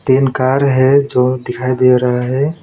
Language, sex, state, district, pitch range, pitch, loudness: Hindi, male, West Bengal, Alipurduar, 125-135 Hz, 130 Hz, -13 LUFS